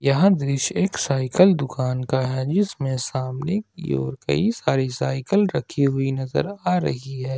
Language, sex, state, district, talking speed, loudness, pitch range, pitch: Hindi, male, Jharkhand, Ranchi, 165 wpm, -22 LUFS, 130-180 Hz, 135 Hz